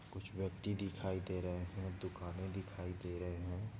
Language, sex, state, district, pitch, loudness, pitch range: Hindi, male, Maharashtra, Nagpur, 95 Hz, -44 LUFS, 90-95 Hz